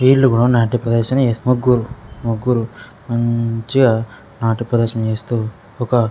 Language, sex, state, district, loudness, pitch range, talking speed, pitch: Telugu, male, Telangana, Karimnagar, -17 LUFS, 115-125 Hz, 125 wpm, 115 Hz